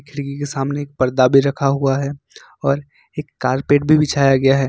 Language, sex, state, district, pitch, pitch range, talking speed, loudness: Hindi, male, Jharkhand, Ranchi, 140 Hz, 135-145 Hz, 190 wpm, -17 LUFS